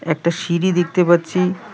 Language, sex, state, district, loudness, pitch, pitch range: Bengali, male, West Bengal, Cooch Behar, -18 LUFS, 175 Hz, 170-180 Hz